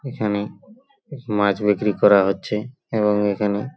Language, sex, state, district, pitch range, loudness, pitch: Bengali, male, West Bengal, Paschim Medinipur, 100-130 Hz, -20 LUFS, 105 Hz